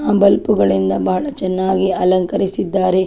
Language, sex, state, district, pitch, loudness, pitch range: Kannada, female, Karnataka, Chamarajanagar, 185 Hz, -16 LUFS, 180-190 Hz